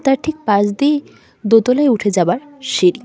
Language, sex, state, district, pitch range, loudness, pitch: Bengali, female, West Bengal, Cooch Behar, 205-280 Hz, -16 LUFS, 245 Hz